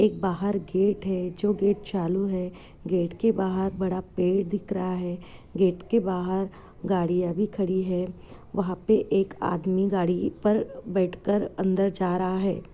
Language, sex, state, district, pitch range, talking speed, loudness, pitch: Hindi, female, Chhattisgarh, Korba, 180-200 Hz, 165 wpm, -26 LUFS, 190 Hz